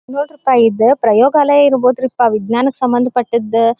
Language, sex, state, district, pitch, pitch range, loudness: Kannada, female, Karnataka, Dharwad, 250 Hz, 235-265 Hz, -13 LUFS